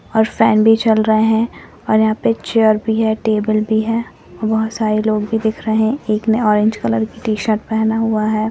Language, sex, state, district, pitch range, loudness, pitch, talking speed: Hindi, female, Jharkhand, Jamtara, 215-225 Hz, -16 LUFS, 220 Hz, 210 wpm